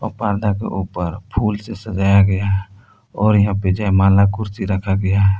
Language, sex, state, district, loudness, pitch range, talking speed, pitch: Hindi, male, Jharkhand, Palamu, -18 LUFS, 95-105 Hz, 180 wpm, 100 Hz